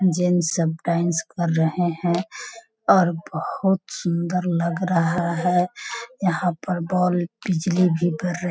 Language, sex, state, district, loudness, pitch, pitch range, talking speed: Hindi, female, Bihar, Sitamarhi, -22 LUFS, 175 Hz, 170-180 Hz, 125 wpm